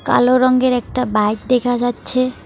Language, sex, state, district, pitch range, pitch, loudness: Bengali, female, West Bengal, Alipurduar, 245-255 Hz, 250 Hz, -16 LUFS